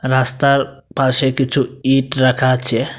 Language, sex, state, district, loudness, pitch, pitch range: Bengali, male, Tripura, Dhalai, -15 LUFS, 130 Hz, 130-135 Hz